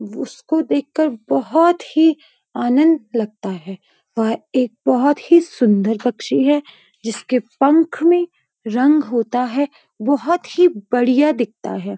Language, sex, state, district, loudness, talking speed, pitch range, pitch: Hindi, female, Uttarakhand, Uttarkashi, -17 LUFS, 125 wpm, 225-310 Hz, 255 Hz